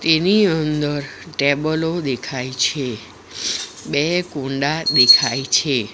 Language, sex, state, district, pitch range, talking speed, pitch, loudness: Gujarati, female, Gujarat, Valsad, 130-160 Hz, 90 wpm, 145 Hz, -18 LUFS